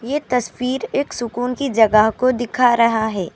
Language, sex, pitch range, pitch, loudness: Urdu, female, 220-255 Hz, 245 Hz, -18 LUFS